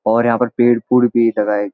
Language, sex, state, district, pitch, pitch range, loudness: Hindi, male, Uttarakhand, Uttarkashi, 115 Hz, 110-120 Hz, -15 LUFS